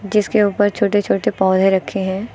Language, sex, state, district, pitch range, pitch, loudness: Hindi, female, Uttar Pradesh, Lucknow, 190-205 Hz, 205 Hz, -17 LUFS